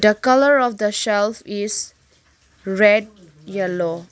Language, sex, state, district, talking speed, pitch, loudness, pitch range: English, female, Arunachal Pradesh, Lower Dibang Valley, 115 wpm, 210 Hz, -18 LUFS, 190-215 Hz